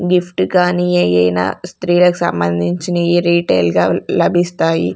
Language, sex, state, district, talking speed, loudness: Telugu, female, Andhra Pradesh, Sri Satya Sai, 95 wpm, -14 LUFS